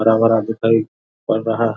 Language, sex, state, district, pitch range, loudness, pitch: Hindi, male, Bihar, Vaishali, 110-115 Hz, -17 LUFS, 115 Hz